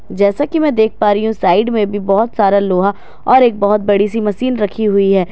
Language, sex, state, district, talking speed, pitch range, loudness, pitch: Hindi, female, Bihar, Katihar, 250 wpm, 200-220 Hz, -13 LUFS, 205 Hz